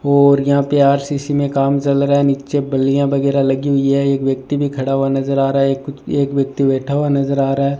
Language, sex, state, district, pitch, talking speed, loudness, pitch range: Hindi, male, Rajasthan, Bikaner, 140 Hz, 260 wpm, -16 LUFS, 135-140 Hz